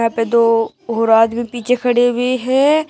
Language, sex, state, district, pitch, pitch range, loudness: Hindi, female, Uttar Pradesh, Shamli, 240 Hz, 230-250 Hz, -15 LUFS